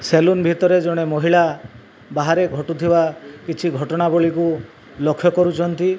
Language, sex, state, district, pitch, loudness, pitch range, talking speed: Odia, male, Odisha, Malkangiri, 165 Hz, -18 LUFS, 150-170 Hz, 110 wpm